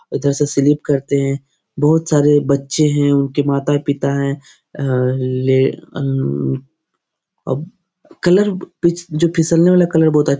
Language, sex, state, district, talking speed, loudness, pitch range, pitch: Hindi, male, Bihar, Jahanabad, 150 wpm, -16 LUFS, 135-160 Hz, 145 Hz